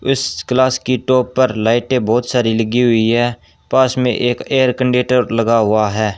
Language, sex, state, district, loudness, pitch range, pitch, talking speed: Hindi, male, Rajasthan, Bikaner, -15 LUFS, 115-130 Hz, 125 Hz, 185 wpm